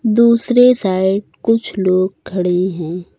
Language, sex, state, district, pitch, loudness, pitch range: Hindi, female, Uttar Pradesh, Lucknow, 190 Hz, -15 LUFS, 185-230 Hz